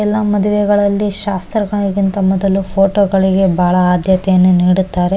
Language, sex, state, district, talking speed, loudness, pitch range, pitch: Kannada, male, Karnataka, Bellary, 115 wpm, -13 LUFS, 190-205 Hz, 195 Hz